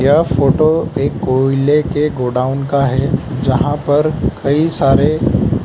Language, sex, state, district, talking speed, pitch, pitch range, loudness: Hindi, male, Mizoram, Aizawl, 140 wpm, 140 Hz, 130-150 Hz, -14 LUFS